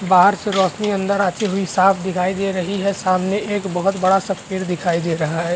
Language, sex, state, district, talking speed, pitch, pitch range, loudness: Hindi, male, Chhattisgarh, Balrampur, 235 wpm, 190 Hz, 180-200 Hz, -19 LUFS